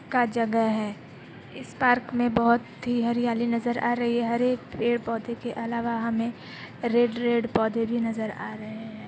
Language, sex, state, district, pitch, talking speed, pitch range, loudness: Hindi, female, Bihar, Purnia, 235 Hz, 170 wpm, 230-240 Hz, -26 LUFS